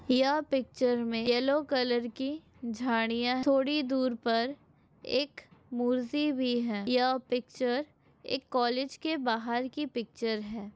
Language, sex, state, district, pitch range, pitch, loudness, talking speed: Hindi, female, Chhattisgarh, Bilaspur, 240-270 Hz, 250 Hz, -31 LUFS, 130 wpm